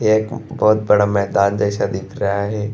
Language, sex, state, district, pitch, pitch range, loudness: Hindi, male, Chhattisgarh, Bastar, 105 Hz, 100-110 Hz, -18 LUFS